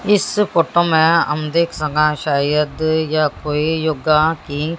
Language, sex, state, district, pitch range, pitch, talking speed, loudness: Hindi, female, Haryana, Jhajjar, 150-165 Hz, 155 Hz, 140 wpm, -17 LUFS